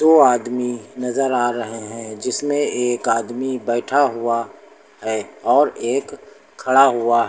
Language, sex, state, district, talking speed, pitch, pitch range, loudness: Hindi, male, Uttar Pradesh, Lucknow, 140 wpm, 120 Hz, 115-130 Hz, -19 LUFS